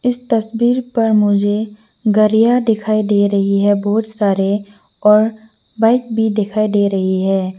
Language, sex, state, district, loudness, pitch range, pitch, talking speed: Hindi, female, Arunachal Pradesh, Lower Dibang Valley, -15 LUFS, 205-225 Hz, 215 Hz, 140 wpm